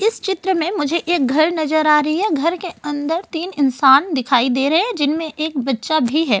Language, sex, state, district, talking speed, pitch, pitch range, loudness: Hindi, female, Delhi, New Delhi, 225 wpm, 310 Hz, 275-340 Hz, -17 LUFS